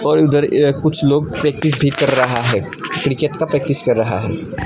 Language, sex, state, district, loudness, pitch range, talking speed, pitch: Hindi, male, Assam, Kamrup Metropolitan, -16 LUFS, 130-150 Hz, 205 wpm, 145 Hz